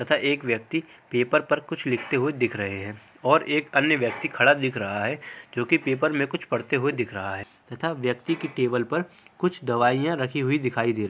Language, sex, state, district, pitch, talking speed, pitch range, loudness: Hindi, male, Uttar Pradesh, Hamirpur, 130 Hz, 220 wpm, 120-155 Hz, -25 LUFS